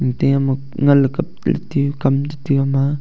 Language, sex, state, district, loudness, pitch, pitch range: Wancho, male, Arunachal Pradesh, Longding, -18 LUFS, 140 Hz, 135-145 Hz